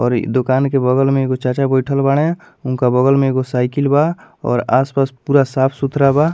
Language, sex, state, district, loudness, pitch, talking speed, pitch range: Bhojpuri, male, Bihar, Muzaffarpur, -16 LUFS, 135 Hz, 200 wpm, 130-140 Hz